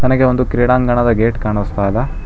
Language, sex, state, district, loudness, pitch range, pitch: Kannada, male, Karnataka, Bangalore, -15 LUFS, 110-125 Hz, 120 Hz